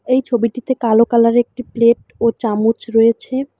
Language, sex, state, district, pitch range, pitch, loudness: Bengali, female, West Bengal, Alipurduar, 230-250 Hz, 235 Hz, -15 LUFS